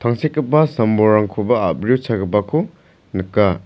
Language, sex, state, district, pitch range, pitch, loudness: Garo, male, Meghalaya, South Garo Hills, 105-150 Hz, 110 Hz, -17 LUFS